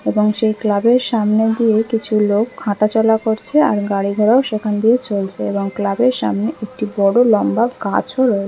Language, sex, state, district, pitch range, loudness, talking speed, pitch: Bengali, female, West Bengal, Kolkata, 205-230 Hz, -16 LUFS, 170 wpm, 215 Hz